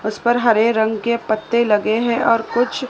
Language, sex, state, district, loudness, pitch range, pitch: Hindi, female, Maharashtra, Mumbai Suburban, -17 LUFS, 220-235 Hz, 230 Hz